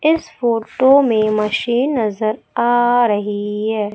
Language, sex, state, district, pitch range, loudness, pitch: Hindi, female, Madhya Pradesh, Umaria, 215-245 Hz, -16 LUFS, 225 Hz